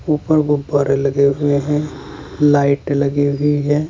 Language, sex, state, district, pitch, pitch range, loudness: Hindi, male, Uttar Pradesh, Saharanpur, 145 Hz, 140-150 Hz, -16 LUFS